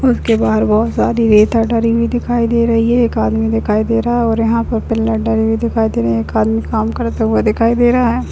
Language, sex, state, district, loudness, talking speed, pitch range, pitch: Hindi, female, Bihar, Madhepura, -14 LUFS, 260 wpm, 220-235 Hz, 225 Hz